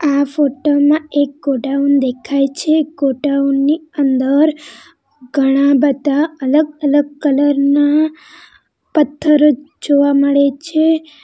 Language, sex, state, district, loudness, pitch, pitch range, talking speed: Gujarati, female, Gujarat, Valsad, -14 LUFS, 290 Hz, 280-300 Hz, 100 wpm